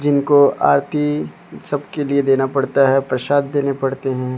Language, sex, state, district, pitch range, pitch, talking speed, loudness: Hindi, male, Odisha, Sambalpur, 135-145 Hz, 140 Hz, 150 wpm, -17 LUFS